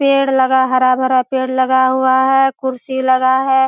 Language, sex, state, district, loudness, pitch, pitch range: Hindi, female, Bihar, Purnia, -14 LUFS, 260 Hz, 260-265 Hz